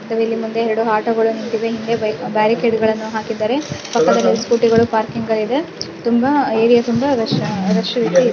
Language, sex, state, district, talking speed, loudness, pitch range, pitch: Kannada, female, Karnataka, Shimoga, 185 wpm, -17 LUFS, 220-235 Hz, 225 Hz